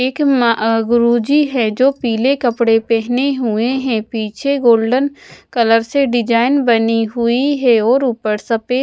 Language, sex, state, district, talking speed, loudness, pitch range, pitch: Hindi, female, Odisha, Sambalpur, 150 wpm, -15 LUFS, 225-265 Hz, 240 Hz